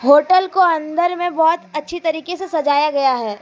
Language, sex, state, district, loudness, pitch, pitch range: Hindi, female, Jharkhand, Deoghar, -17 LUFS, 320 Hz, 290-350 Hz